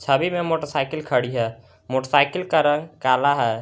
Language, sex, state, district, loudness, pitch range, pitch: Hindi, male, Jharkhand, Garhwa, -21 LUFS, 125-155 Hz, 140 Hz